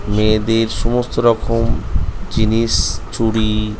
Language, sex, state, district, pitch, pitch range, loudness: Bengali, male, West Bengal, North 24 Parganas, 110 Hz, 100-115 Hz, -17 LUFS